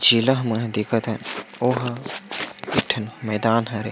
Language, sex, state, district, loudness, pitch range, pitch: Chhattisgarhi, male, Chhattisgarh, Sukma, -23 LUFS, 110-120 Hz, 115 Hz